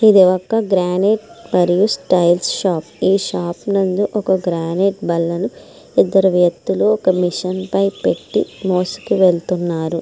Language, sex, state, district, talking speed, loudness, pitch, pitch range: Telugu, male, Andhra Pradesh, Srikakulam, 125 wpm, -17 LUFS, 185 Hz, 175-195 Hz